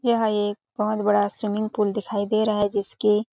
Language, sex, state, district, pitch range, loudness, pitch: Hindi, female, Chhattisgarh, Balrampur, 205-215 Hz, -23 LUFS, 210 Hz